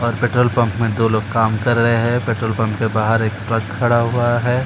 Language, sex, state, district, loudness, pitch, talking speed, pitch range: Hindi, male, Uttar Pradesh, Etah, -17 LUFS, 115 Hz, 260 wpm, 110-120 Hz